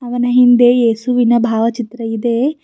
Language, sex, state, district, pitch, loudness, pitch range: Kannada, female, Karnataka, Bidar, 240 Hz, -13 LUFS, 230-245 Hz